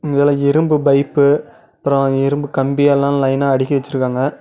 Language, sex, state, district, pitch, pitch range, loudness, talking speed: Tamil, male, Tamil Nadu, Namakkal, 140 Hz, 135-145 Hz, -15 LUFS, 120 wpm